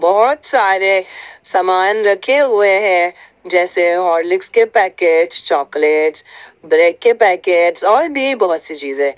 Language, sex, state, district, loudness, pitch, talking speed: Hindi, female, Jharkhand, Ranchi, -13 LUFS, 190 Hz, 125 wpm